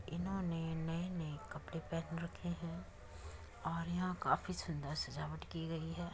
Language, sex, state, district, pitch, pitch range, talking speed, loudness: Hindi, female, Uttar Pradesh, Muzaffarnagar, 165 Hz, 145-170 Hz, 145 wpm, -42 LUFS